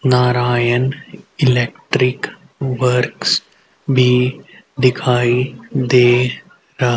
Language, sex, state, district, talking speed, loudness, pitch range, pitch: Hindi, male, Haryana, Rohtak, 60 wpm, -16 LUFS, 125-130 Hz, 125 Hz